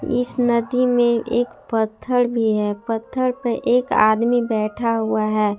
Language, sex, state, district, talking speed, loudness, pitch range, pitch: Hindi, female, Jharkhand, Palamu, 150 wpm, -20 LUFS, 220-245 Hz, 235 Hz